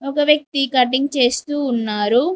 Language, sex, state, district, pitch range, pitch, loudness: Telugu, female, Telangana, Mahabubabad, 245-290 Hz, 270 Hz, -18 LUFS